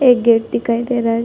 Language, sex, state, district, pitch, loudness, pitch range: Hindi, female, Chhattisgarh, Sarguja, 230 Hz, -16 LUFS, 230-245 Hz